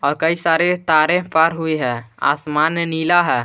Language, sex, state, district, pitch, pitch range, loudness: Hindi, male, Jharkhand, Garhwa, 160 Hz, 150-170 Hz, -17 LUFS